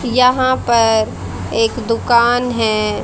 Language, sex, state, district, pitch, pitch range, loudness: Hindi, female, Haryana, Rohtak, 235 Hz, 225-245 Hz, -15 LUFS